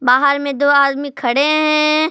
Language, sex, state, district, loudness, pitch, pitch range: Hindi, female, Jharkhand, Palamu, -14 LUFS, 285 Hz, 275-305 Hz